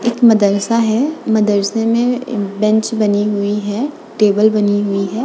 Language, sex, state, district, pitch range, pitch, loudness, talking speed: Hindi, female, Uttar Pradesh, Budaun, 205-230 Hz, 215 Hz, -15 LUFS, 150 wpm